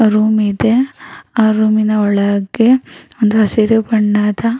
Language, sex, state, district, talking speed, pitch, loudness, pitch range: Kannada, female, Karnataka, Raichur, 130 wpm, 215 Hz, -13 LUFS, 210-225 Hz